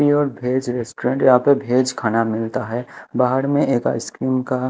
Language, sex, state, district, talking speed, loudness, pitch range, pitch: Hindi, male, Chhattisgarh, Raipur, 180 wpm, -19 LUFS, 120-130 Hz, 125 Hz